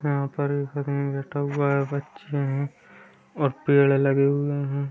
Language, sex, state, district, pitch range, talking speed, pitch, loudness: Hindi, male, Uttar Pradesh, Jyotiba Phule Nagar, 140-145 Hz, 145 wpm, 140 Hz, -24 LUFS